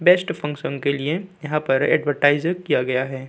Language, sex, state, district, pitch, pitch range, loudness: Hindi, male, Uttar Pradesh, Budaun, 150 Hz, 140-165 Hz, -21 LUFS